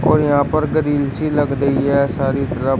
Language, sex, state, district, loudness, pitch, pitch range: Hindi, male, Uttar Pradesh, Shamli, -17 LUFS, 140 Hz, 140-150 Hz